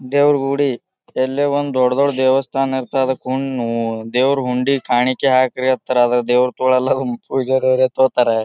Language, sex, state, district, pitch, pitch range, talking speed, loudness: Kannada, male, Karnataka, Bijapur, 130 Hz, 125-135 Hz, 140 wpm, -17 LUFS